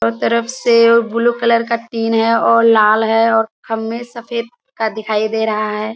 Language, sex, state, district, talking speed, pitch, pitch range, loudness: Hindi, female, Bihar, Kishanganj, 190 wpm, 225 Hz, 220-235 Hz, -15 LUFS